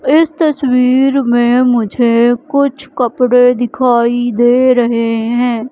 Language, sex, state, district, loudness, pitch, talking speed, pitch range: Hindi, female, Madhya Pradesh, Katni, -12 LUFS, 245 Hz, 105 wpm, 240-260 Hz